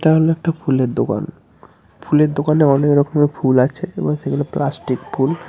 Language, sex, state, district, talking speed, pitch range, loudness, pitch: Bengali, male, West Bengal, Purulia, 155 wpm, 135-160 Hz, -17 LUFS, 145 Hz